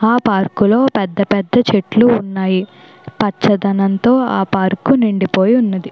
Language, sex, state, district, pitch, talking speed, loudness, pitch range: Telugu, female, Andhra Pradesh, Chittoor, 205 Hz, 100 wpm, -14 LUFS, 195-230 Hz